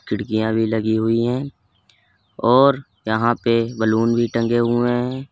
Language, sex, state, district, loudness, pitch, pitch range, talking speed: Hindi, male, Uttar Pradesh, Lalitpur, -19 LUFS, 115 Hz, 110-120 Hz, 145 wpm